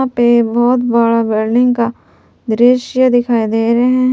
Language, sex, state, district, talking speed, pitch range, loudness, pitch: Hindi, female, Jharkhand, Palamu, 145 wpm, 230-250 Hz, -13 LUFS, 240 Hz